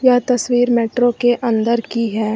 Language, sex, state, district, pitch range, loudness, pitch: Hindi, female, Uttar Pradesh, Lucknow, 230-245 Hz, -16 LUFS, 240 Hz